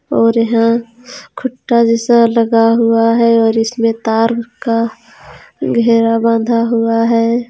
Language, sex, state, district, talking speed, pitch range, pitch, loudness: Hindi, female, Jharkhand, Ranchi, 120 wpm, 230-235 Hz, 230 Hz, -13 LUFS